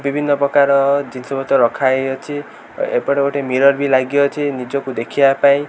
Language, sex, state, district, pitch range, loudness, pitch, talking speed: Odia, male, Odisha, Khordha, 135-140 Hz, -16 LUFS, 140 Hz, 135 wpm